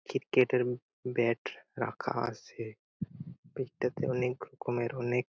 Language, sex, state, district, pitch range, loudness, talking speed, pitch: Bengali, male, West Bengal, Purulia, 120-125 Hz, -34 LUFS, 145 wpm, 125 Hz